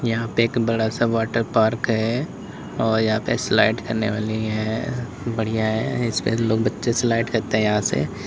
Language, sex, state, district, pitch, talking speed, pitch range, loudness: Hindi, male, Uttar Pradesh, Lalitpur, 110 Hz, 180 wpm, 110-115 Hz, -22 LUFS